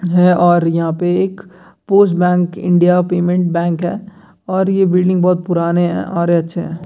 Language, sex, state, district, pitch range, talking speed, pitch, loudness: Hindi, male, Bihar, Jamui, 175-185 Hz, 165 wpm, 180 Hz, -14 LUFS